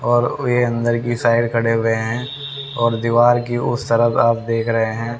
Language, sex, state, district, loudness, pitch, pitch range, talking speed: Hindi, male, Haryana, Rohtak, -18 LUFS, 120 Hz, 115-120 Hz, 195 wpm